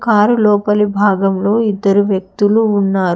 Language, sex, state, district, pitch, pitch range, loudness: Telugu, female, Telangana, Hyderabad, 205 Hz, 195-210 Hz, -13 LUFS